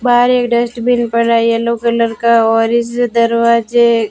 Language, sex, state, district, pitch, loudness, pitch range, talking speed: Hindi, female, Rajasthan, Bikaner, 235 Hz, -12 LUFS, 230-240 Hz, 160 wpm